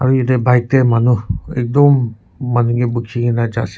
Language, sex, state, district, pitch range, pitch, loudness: Nagamese, male, Nagaland, Kohima, 115-130 Hz, 120 Hz, -15 LUFS